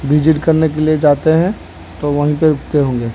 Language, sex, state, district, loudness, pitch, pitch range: Hindi, male, Odisha, Khordha, -14 LUFS, 150 Hz, 145-160 Hz